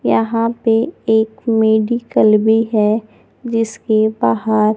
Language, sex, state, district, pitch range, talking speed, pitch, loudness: Hindi, female, Maharashtra, Gondia, 215-230 Hz, 100 wpm, 220 Hz, -15 LUFS